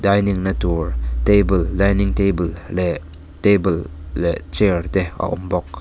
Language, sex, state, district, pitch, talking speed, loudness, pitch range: Mizo, male, Mizoram, Aizawl, 90 Hz, 145 wpm, -19 LUFS, 80-100 Hz